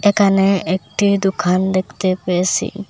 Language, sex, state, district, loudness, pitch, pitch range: Bengali, female, Assam, Hailakandi, -17 LUFS, 190 Hz, 185-200 Hz